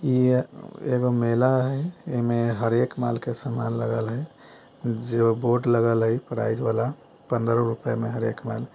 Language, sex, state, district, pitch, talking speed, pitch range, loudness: Bajjika, male, Bihar, Vaishali, 120 Hz, 165 wpm, 115-125 Hz, -25 LUFS